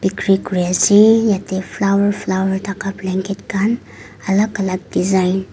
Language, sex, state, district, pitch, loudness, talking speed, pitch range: Nagamese, female, Nagaland, Kohima, 195 Hz, -17 LUFS, 130 wpm, 190-205 Hz